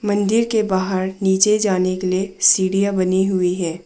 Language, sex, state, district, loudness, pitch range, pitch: Hindi, female, Arunachal Pradesh, Papum Pare, -18 LUFS, 185-200 Hz, 190 Hz